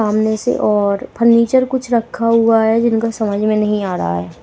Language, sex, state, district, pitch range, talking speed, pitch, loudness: Hindi, female, Himachal Pradesh, Shimla, 210-235 Hz, 205 wpm, 220 Hz, -15 LUFS